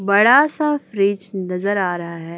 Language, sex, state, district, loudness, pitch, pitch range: Hindi, female, Chhattisgarh, Raipur, -18 LUFS, 200 Hz, 180-235 Hz